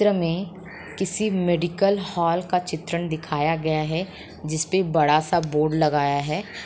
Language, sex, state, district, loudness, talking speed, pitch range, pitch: Hindi, female, Bihar, Sitamarhi, -23 LUFS, 135 wpm, 155-185 Hz, 170 Hz